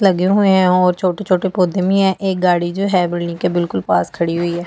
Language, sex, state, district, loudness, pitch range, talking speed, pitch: Hindi, female, Delhi, New Delhi, -16 LUFS, 175-190 Hz, 245 wpm, 180 Hz